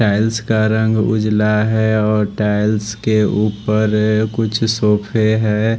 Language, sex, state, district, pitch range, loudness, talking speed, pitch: Hindi, male, Odisha, Malkangiri, 105-110 Hz, -16 LUFS, 135 wpm, 110 Hz